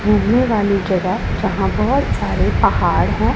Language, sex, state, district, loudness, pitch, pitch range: Hindi, female, Punjab, Pathankot, -17 LUFS, 205 Hz, 190-215 Hz